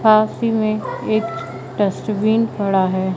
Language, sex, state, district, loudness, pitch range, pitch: Hindi, female, Madhya Pradesh, Umaria, -19 LUFS, 190-220 Hz, 215 Hz